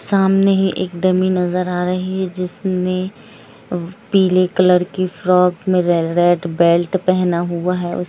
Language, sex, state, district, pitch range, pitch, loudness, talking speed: Hindi, female, Jharkhand, Jamtara, 175-185 Hz, 180 Hz, -17 LUFS, 155 wpm